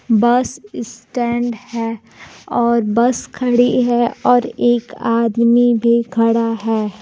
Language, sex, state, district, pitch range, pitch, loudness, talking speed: Hindi, female, Bihar, Kaimur, 230-245 Hz, 235 Hz, -16 LUFS, 110 wpm